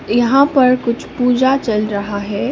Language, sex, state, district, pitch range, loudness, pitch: Hindi, female, Sikkim, Gangtok, 210-255 Hz, -15 LUFS, 240 Hz